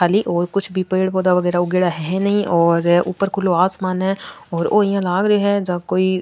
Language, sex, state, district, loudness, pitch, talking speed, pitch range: Rajasthani, female, Rajasthan, Nagaur, -18 LUFS, 185 Hz, 155 wpm, 175-195 Hz